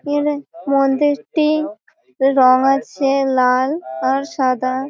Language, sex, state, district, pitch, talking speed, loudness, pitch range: Bengali, female, West Bengal, Malda, 275 Hz, 100 wpm, -17 LUFS, 260-300 Hz